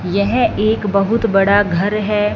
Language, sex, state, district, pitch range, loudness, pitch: Hindi, female, Punjab, Fazilka, 200-215 Hz, -15 LUFS, 205 Hz